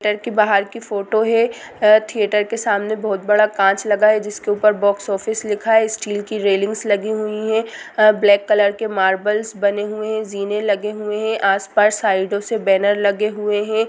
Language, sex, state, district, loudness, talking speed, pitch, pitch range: Hindi, female, Chhattisgarh, Sukma, -18 LUFS, 195 wpm, 210 Hz, 205-220 Hz